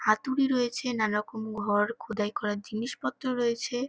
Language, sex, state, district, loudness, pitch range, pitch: Bengali, female, West Bengal, Kolkata, -29 LUFS, 210-245 Hz, 220 Hz